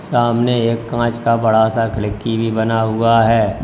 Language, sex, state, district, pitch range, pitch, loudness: Hindi, male, Uttar Pradesh, Lalitpur, 110-115 Hz, 115 Hz, -16 LUFS